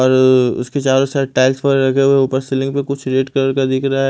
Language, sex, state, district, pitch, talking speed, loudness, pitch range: Hindi, male, Odisha, Malkangiri, 135 Hz, 280 wpm, -15 LUFS, 130-135 Hz